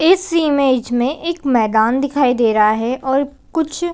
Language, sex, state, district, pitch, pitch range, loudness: Hindi, female, Chhattisgarh, Bilaspur, 270 Hz, 240-320 Hz, -16 LUFS